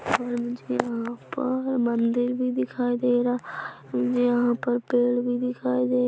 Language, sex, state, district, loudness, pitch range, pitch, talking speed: Hindi, female, Chhattisgarh, Rajnandgaon, -25 LUFS, 235-245 Hz, 245 Hz, 160 wpm